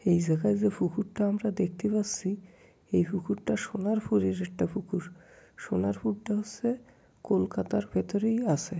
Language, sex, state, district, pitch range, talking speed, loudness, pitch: Bengali, male, West Bengal, Kolkata, 175-210 Hz, 135 wpm, -30 LUFS, 200 Hz